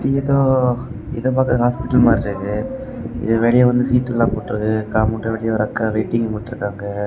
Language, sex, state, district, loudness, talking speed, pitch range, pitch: Tamil, male, Tamil Nadu, Kanyakumari, -18 LUFS, 170 wpm, 110-125 Hz, 115 Hz